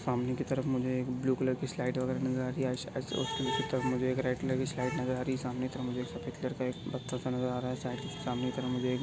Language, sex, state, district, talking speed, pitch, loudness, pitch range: Hindi, male, Maharashtra, Pune, 295 wpm, 130 Hz, -34 LUFS, 125-130 Hz